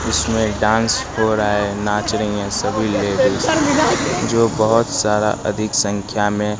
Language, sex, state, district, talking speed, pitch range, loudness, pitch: Hindi, male, Bihar, Kaimur, 155 wpm, 105-110 Hz, -17 LUFS, 105 Hz